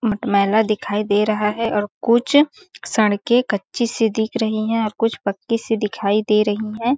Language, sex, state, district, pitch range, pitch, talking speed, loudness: Hindi, female, Chhattisgarh, Balrampur, 210-230 Hz, 220 Hz, 180 wpm, -19 LUFS